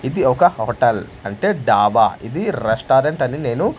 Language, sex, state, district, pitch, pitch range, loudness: Telugu, male, Andhra Pradesh, Manyam, 130 Hz, 125-150 Hz, -17 LUFS